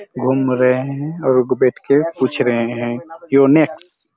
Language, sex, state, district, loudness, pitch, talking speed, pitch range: Hindi, male, Chhattisgarh, Raigarh, -16 LUFS, 130 Hz, 160 wpm, 125-155 Hz